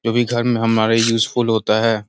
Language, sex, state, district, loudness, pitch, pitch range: Hindi, male, Uttar Pradesh, Gorakhpur, -17 LUFS, 115 Hz, 110-120 Hz